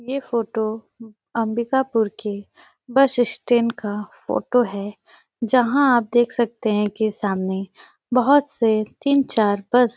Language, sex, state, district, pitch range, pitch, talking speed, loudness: Hindi, female, Chhattisgarh, Sarguja, 210-250 Hz, 230 Hz, 140 wpm, -21 LUFS